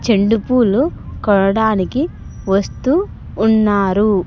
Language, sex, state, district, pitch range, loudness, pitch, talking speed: Telugu, male, Andhra Pradesh, Sri Satya Sai, 200-245 Hz, -16 LUFS, 215 Hz, 55 wpm